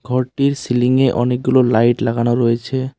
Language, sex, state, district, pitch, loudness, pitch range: Bengali, male, West Bengal, Cooch Behar, 125 Hz, -16 LUFS, 120-130 Hz